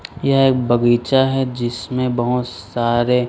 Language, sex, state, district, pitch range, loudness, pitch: Hindi, male, Chhattisgarh, Raipur, 120-130 Hz, -18 LUFS, 125 Hz